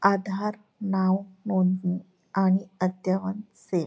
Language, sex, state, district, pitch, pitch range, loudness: Marathi, female, Maharashtra, Pune, 190 Hz, 185-200 Hz, -27 LUFS